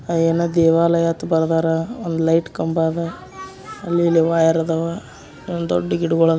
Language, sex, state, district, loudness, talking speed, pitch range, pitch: Kannada, male, Karnataka, Bijapur, -19 LUFS, 160 wpm, 165-170 Hz, 165 Hz